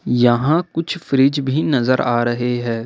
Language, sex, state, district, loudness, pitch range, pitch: Hindi, male, Jharkhand, Ranchi, -17 LUFS, 120-150 Hz, 130 Hz